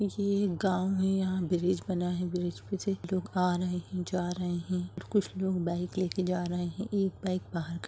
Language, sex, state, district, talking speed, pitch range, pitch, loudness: Bhojpuri, female, Bihar, Saran, 230 wpm, 175-190 Hz, 180 Hz, -31 LUFS